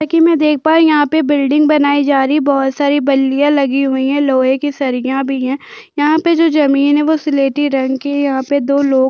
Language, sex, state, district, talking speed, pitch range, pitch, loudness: Hindi, female, Chhattisgarh, Jashpur, 255 wpm, 270-295 Hz, 285 Hz, -13 LUFS